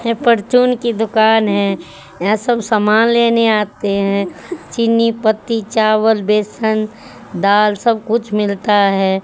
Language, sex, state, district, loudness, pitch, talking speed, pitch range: Hindi, female, Haryana, Charkhi Dadri, -14 LUFS, 220 Hz, 130 wpm, 205-230 Hz